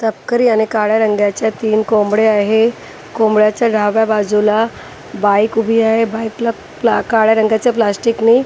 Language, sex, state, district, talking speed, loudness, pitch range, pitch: Marathi, female, Maharashtra, Gondia, 130 wpm, -14 LUFS, 215-225 Hz, 220 Hz